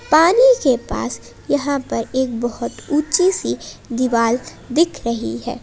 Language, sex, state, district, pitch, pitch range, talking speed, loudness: Hindi, female, Jharkhand, Palamu, 260 Hz, 235-320 Hz, 140 wpm, -18 LUFS